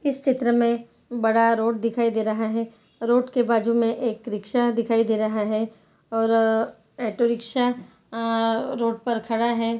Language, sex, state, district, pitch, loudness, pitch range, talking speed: Hindi, female, Bihar, Saran, 230 Hz, -23 LUFS, 225-235 Hz, 165 wpm